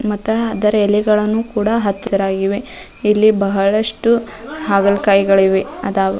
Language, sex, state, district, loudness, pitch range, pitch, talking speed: Kannada, female, Karnataka, Dharwad, -15 LUFS, 195-220 Hz, 210 Hz, 95 wpm